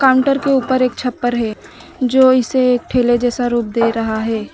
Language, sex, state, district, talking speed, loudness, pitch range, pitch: Hindi, female, West Bengal, Alipurduar, 185 wpm, -16 LUFS, 235-260 Hz, 245 Hz